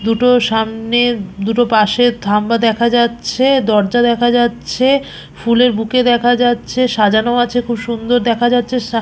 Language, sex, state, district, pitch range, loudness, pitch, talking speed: Bengali, female, West Bengal, Purulia, 225-245 Hz, -14 LUFS, 240 Hz, 140 wpm